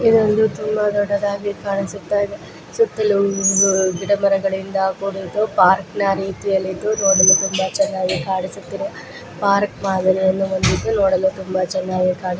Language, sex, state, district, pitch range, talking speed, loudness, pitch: Kannada, female, Karnataka, Raichur, 190-205 Hz, 100 wpm, -18 LUFS, 195 Hz